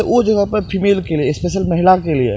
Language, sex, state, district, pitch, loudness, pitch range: Maithili, male, Bihar, Purnia, 185 Hz, -15 LUFS, 170-200 Hz